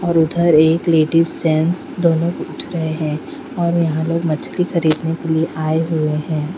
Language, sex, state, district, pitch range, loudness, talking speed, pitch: Hindi, female, Bihar, Patna, 155-170 Hz, -17 LUFS, 175 wpm, 165 Hz